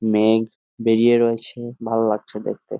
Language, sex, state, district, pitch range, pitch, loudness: Bengali, male, West Bengal, Jhargram, 110-115 Hz, 115 Hz, -20 LUFS